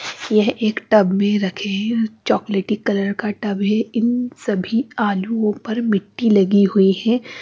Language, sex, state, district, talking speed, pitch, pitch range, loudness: Hindi, female, Bihar, Katihar, 145 wpm, 215 Hz, 200-230 Hz, -19 LUFS